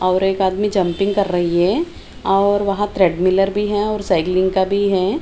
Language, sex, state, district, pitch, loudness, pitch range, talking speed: Hindi, female, Bihar, Patna, 195 Hz, -17 LUFS, 185-205 Hz, 195 wpm